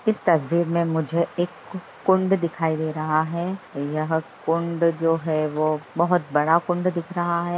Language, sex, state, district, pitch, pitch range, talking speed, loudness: Hindi, male, Bihar, Jahanabad, 170 Hz, 160-175 Hz, 165 wpm, -23 LUFS